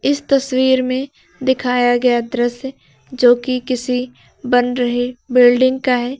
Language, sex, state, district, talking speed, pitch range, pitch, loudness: Hindi, female, Uttar Pradesh, Lucknow, 135 wpm, 245-260 Hz, 250 Hz, -16 LUFS